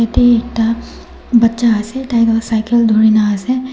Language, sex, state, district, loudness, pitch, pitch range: Nagamese, male, Nagaland, Dimapur, -13 LUFS, 230 Hz, 220-240 Hz